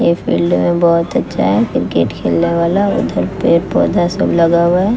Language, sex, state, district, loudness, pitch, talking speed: Hindi, female, Bihar, West Champaran, -14 LUFS, 170 Hz, 195 wpm